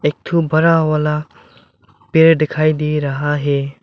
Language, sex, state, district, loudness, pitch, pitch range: Hindi, male, Arunachal Pradesh, Lower Dibang Valley, -15 LUFS, 150 Hz, 145-160 Hz